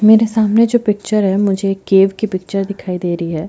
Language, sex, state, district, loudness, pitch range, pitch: Hindi, female, Chhattisgarh, Jashpur, -15 LUFS, 190-215 Hz, 195 Hz